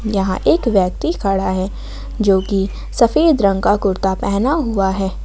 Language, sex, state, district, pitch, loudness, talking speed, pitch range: Hindi, female, Jharkhand, Ranchi, 195 Hz, -17 LUFS, 160 wpm, 190-215 Hz